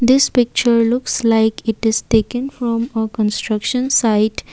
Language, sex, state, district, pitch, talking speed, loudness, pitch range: English, female, Assam, Kamrup Metropolitan, 230 Hz, 145 wpm, -16 LUFS, 220-245 Hz